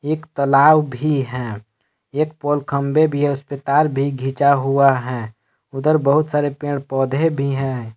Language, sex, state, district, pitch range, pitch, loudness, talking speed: Hindi, male, Jharkhand, Palamu, 135-145 Hz, 140 Hz, -18 LUFS, 175 wpm